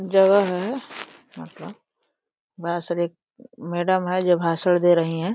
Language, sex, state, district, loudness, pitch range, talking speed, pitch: Hindi, female, Uttar Pradesh, Deoria, -21 LUFS, 170-190 Hz, 125 wpm, 180 Hz